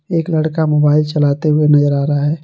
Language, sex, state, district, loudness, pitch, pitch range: Hindi, male, Jharkhand, Garhwa, -14 LUFS, 150 Hz, 145-155 Hz